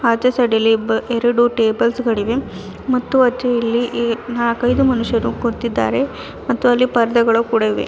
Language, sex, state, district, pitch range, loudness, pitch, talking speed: Kannada, female, Karnataka, Bidar, 230-245 Hz, -17 LUFS, 235 Hz, 130 wpm